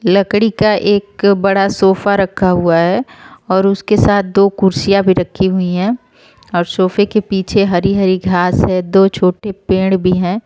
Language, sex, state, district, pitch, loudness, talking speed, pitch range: Hindi, female, Uttar Pradesh, Etah, 195 Hz, -13 LUFS, 165 wpm, 185-205 Hz